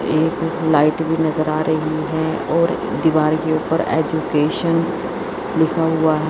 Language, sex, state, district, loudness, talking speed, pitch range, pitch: Hindi, female, Chandigarh, Chandigarh, -18 LUFS, 145 wpm, 155-160 Hz, 160 Hz